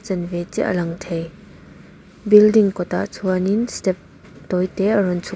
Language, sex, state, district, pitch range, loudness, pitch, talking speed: Mizo, female, Mizoram, Aizawl, 180-205 Hz, -19 LUFS, 185 Hz, 155 wpm